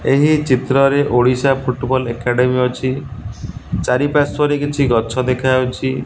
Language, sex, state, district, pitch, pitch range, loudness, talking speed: Odia, male, Odisha, Nuapada, 130 Hz, 125-140 Hz, -16 LUFS, 120 wpm